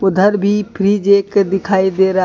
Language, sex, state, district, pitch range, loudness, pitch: Hindi, male, Jharkhand, Deoghar, 190-200 Hz, -14 LUFS, 195 Hz